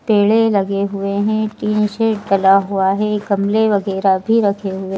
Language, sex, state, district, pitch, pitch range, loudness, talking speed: Hindi, female, Madhya Pradesh, Bhopal, 200 Hz, 195-215 Hz, -16 LUFS, 155 wpm